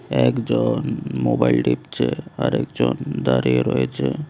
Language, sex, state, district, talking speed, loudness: Bengali, male, Tripura, West Tripura, 100 wpm, -21 LUFS